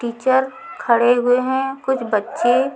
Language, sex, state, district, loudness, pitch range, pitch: Hindi, female, Chhattisgarh, Raipur, -18 LUFS, 235-265 Hz, 245 Hz